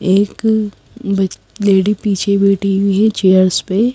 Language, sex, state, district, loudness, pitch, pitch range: Hindi, female, Madhya Pradesh, Bhopal, -14 LUFS, 200 Hz, 195-210 Hz